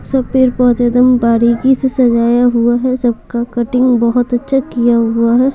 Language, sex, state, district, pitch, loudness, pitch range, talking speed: Hindi, female, Bihar, Patna, 245 Hz, -12 LUFS, 235-255 Hz, 175 wpm